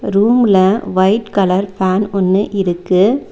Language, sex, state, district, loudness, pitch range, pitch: Tamil, female, Tamil Nadu, Nilgiris, -14 LUFS, 185-205 Hz, 195 Hz